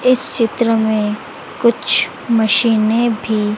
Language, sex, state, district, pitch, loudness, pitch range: Hindi, female, Madhya Pradesh, Dhar, 225 Hz, -15 LUFS, 215-235 Hz